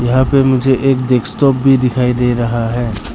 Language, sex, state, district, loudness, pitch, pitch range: Hindi, male, Arunachal Pradesh, Lower Dibang Valley, -13 LUFS, 125 Hz, 120-130 Hz